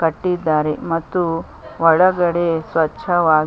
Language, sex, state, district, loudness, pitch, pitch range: Kannada, female, Karnataka, Chamarajanagar, -18 LUFS, 165 Hz, 160-175 Hz